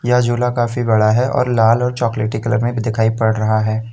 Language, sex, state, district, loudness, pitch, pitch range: Hindi, male, Uttar Pradesh, Lalitpur, -16 LUFS, 115 Hz, 110-125 Hz